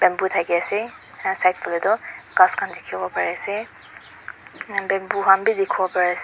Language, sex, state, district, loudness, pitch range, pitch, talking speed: Nagamese, female, Mizoram, Aizawl, -21 LUFS, 175-200 Hz, 190 Hz, 175 wpm